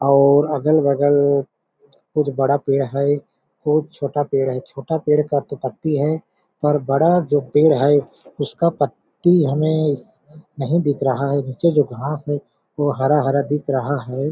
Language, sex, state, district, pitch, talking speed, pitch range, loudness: Hindi, male, Chhattisgarh, Balrampur, 145 Hz, 165 wpm, 140-150 Hz, -19 LUFS